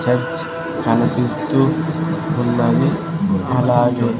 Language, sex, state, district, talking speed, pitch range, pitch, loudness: Telugu, male, Andhra Pradesh, Sri Satya Sai, 55 wpm, 125-165 Hz, 155 Hz, -18 LUFS